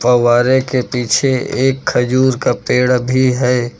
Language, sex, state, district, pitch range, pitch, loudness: Hindi, male, Uttar Pradesh, Lucknow, 125-130 Hz, 125 Hz, -14 LUFS